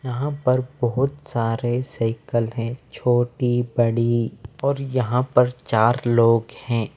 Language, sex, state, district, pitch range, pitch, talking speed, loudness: Hindi, male, Bihar, Patna, 115-130 Hz, 120 Hz, 120 wpm, -22 LUFS